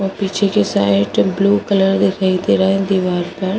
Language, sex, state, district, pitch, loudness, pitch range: Hindi, female, Uttar Pradesh, Varanasi, 195 Hz, -15 LUFS, 185-200 Hz